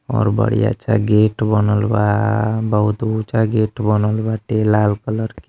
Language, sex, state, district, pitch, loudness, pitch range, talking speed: Bhojpuri, male, Uttar Pradesh, Deoria, 110 Hz, -17 LUFS, 105-110 Hz, 155 wpm